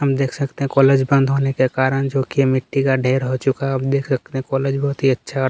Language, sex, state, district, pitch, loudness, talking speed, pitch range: Hindi, male, Chhattisgarh, Kabirdham, 135 Hz, -18 LUFS, 270 wpm, 130-135 Hz